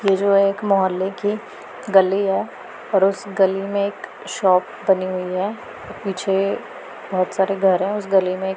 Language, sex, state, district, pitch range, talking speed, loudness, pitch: Hindi, female, Punjab, Pathankot, 190-200 Hz, 175 wpm, -20 LUFS, 195 Hz